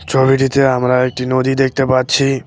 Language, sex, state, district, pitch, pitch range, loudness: Bengali, male, West Bengal, Cooch Behar, 130 Hz, 130-135 Hz, -14 LUFS